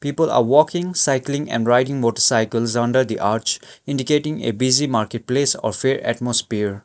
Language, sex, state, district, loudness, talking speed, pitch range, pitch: English, male, Sikkim, Gangtok, -19 LUFS, 150 wpm, 115-140 Hz, 125 Hz